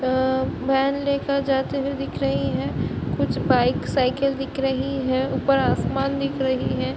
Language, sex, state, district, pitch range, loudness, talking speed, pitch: Hindi, female, Bihar, Darbhanga, 260-275 Hz, -23 LUFS, 165 wpm, 270 Hz